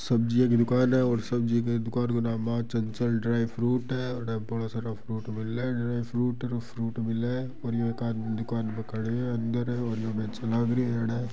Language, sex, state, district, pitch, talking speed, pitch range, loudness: Marwari, male, Rajasthan, Churu, 115 Hz, 205 wpm, 115-120 Hz, -29 LUFS